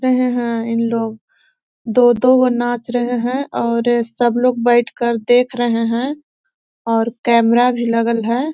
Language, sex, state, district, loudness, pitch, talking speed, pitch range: Hindi, female, Chhattisgarh, Korba, -16 LUFS, 240 Hz, 155 wpm, 235-250 Hz